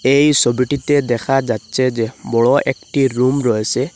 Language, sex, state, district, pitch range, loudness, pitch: Bengali, male, Assam, Hailakandi, 120-135 Hz, -16 LUFS, 130 Hz